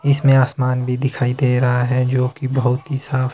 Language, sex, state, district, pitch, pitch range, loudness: Hindi, male, Himachal Pradesh, Shimla, 130 Hz, 125-135 Hz, -18 LUFS